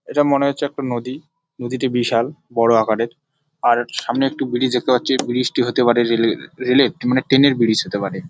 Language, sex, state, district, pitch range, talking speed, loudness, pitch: Bengali, male, West Bengal, Jalpaiguri, 120-140 Hz, 210 wpm, -18 LUFS, 125 Hz